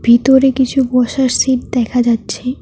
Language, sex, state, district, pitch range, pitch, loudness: Bengali, female, West Bengal, Cooch Behar, 240-265 Hz, 250 Hz, -13 LUFS